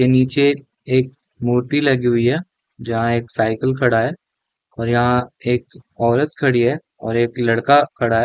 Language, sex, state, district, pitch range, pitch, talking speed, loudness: Hindi, male, Jharkhand, Jamtara, 115-135 Hz, 125 Hz, 160 wpm, -18 LUFS